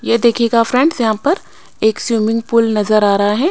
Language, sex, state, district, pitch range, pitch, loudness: Hindi, female, Maharashtra, Mumbai Suburban, 215-235 Hz, 230 Hz, -14 LUFS